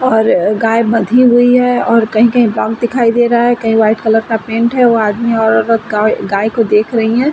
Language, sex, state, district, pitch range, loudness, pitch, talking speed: Hindi, female, Uttar Pradesh, Etah, 220-240 Hz, -11 LUFS, 225 Hz, 220 wpm